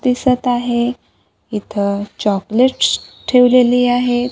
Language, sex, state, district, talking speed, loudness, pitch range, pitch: Marathi, female, Maharashtra, Gondia, 85 wpm, -15 LUFS, 215-250 Hz, 245 Hz